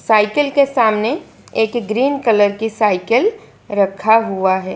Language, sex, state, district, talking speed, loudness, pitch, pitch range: Hindi, female, Gujarat, Valsad, 140 wpm, -16 LUFS, 220 Hz, 205-240 Hz